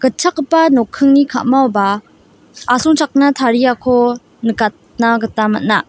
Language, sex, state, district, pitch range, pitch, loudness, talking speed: Garo, female, Meghalaya, West Garo Hills, 230-280 Hz, 250 Hz, -14 LUFS, 70 wpm